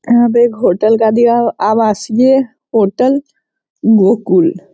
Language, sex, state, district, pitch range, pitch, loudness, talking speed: Hindi, male, Bihar, Sitamarhi, 210-240 Hz, 225 Hz, -12 LUFS, 125 wpm